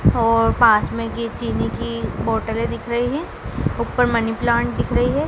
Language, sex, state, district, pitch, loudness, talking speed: Hindi, female, Madhya Pradesh, Dhar, 225 Hz, -20 LUFS, 170 wpm